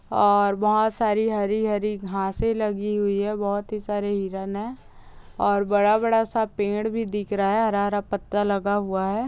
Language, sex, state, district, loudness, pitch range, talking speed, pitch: Hindi, female, Bihar, Saharsa, -24 LUFS, 200-215 Hz, 170 wpm, 205 Hz